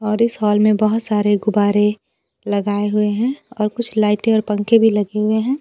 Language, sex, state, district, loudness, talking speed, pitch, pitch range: Hindi, female, Bihar, Kaimur, -17 LUFS, 205 wpm, 210 Hz, 210-225 Hz